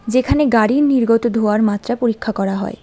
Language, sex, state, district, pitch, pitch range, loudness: Bengali, female, West Bengal, Alipurduar, 230 Hz, 210-245 Hz, -16 LUFS